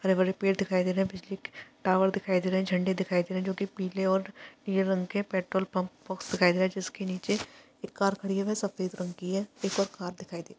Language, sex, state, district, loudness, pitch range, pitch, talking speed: Hindi, female, Chhattisgarh, Balrampur, -30 LUFS, 185-195 Hz, 190 Hz, 270 wpm